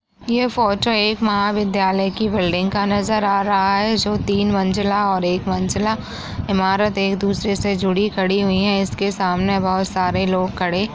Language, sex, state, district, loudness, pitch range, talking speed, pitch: Hindi, female, Maharashtra, Chandrapur, -19 LUFS, 190-205 Hz, 175 wpm, 200 Hz